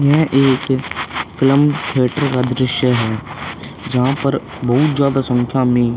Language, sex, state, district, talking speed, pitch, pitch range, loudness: Hindi, male, Chhattisgarh, Korba, 140 wpm, 130 Hz, 125-140 Hz, -16 LUFS